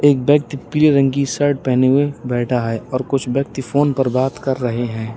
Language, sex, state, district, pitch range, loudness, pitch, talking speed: Hindi, male, Uttar Pradesh, Lalitpur, 125-140 Hz, -17 LUFS, 135 Hz, 220 wpm